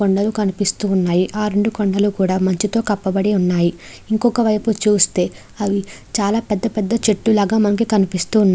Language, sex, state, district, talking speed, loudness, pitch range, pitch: Telugu, female, Andhra Pradesh, Chittoor, 145 wpm, -18 LUFS, 195-215 Hz, 205 Hz